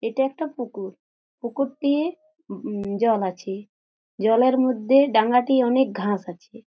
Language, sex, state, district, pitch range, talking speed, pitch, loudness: Bengali, female, West Bengal, Jhargram, 205-265 Hz, 110 wpm, 235 Hz, -22 LUFS